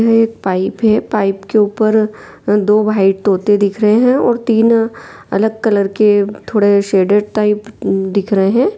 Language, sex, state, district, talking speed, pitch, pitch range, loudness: Hindi, female, Bihar, Saran, 165 wpm, 210 Hz, 200-225 Hz, -13 LUFS